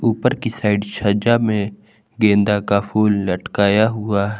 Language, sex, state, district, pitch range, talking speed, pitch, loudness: Hindi, male, Jharkhand, Garhwa, 100-110 Hz, 150 wpm, 105 Hz, -18 LUFS